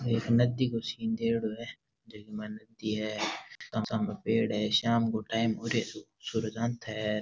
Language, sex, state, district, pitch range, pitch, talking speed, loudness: Rajasthani, male, Rajasthan, Nagaur, 105-115 Hz, 110 Hz, 160 wpm, -31 LUFS